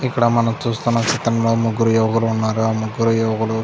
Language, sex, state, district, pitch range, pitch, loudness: Telugu, male, Andhra Pradesh, Chittoor, 110-115 Hz, 115 Hz, -18 LUFS